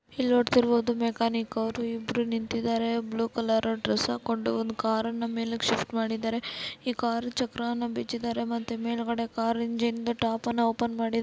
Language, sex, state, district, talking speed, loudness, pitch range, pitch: Kannada, female, Karnataka, Dharwad, 140 wpm, -29 LUFS, 225-235 Hz, 230 Hz